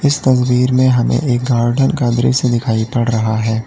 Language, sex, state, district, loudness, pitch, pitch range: Hindi, male, Uttar Pradesh, Lalitpur, -14 LUFS, 125 Hz, 120-130 Hz